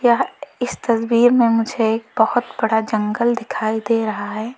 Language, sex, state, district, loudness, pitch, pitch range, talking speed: Hindi, female, Uttar Pradesh, Lalitpur, -19 LUFS, 230 Hz, 220-245 Hz, 170 wpm